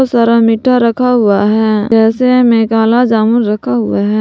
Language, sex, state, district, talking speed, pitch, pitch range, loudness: Hindi, female, Jharkhand, Palamu, 170 wpm, 225 Hz, 215-240 Hz, -10 LUFS